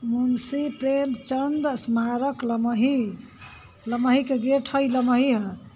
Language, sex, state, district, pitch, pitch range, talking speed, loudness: Bhojpuri, female, Uttar Pradesh, Varanasi, 255 Hz, 235-275 Hz, 125 wpm, -23 LUFS